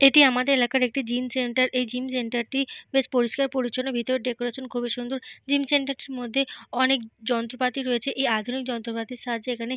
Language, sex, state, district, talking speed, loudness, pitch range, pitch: Bengali, female, Jharkhand, Jamtara, 205 wpm, -25 LUFS, 240-265 Hz, 255 Hz